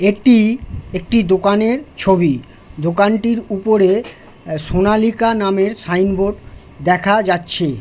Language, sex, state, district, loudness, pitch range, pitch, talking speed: Bengali, male, West Bengal, Jhargram, -16 LUFS, 180-220 Hz, 200 Hz, 90 wpm